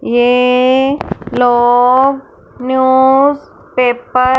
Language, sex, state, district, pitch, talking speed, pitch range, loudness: Hindi, female, Punjab, Fazilka, 255 Hz, 70 wpm, 245-265 Hz, -11 LUFS